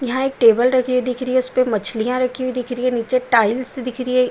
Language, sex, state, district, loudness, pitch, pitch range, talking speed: Hindi, female, Bihar, Saharsa, -18 LUFS, 250 Hz, 245-255 Hz, 280 wpm